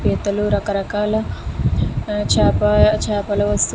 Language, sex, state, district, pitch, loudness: Telugu, female, Andhra Pradesh, Visakhapatnam, 130 Hz, -18 LUFS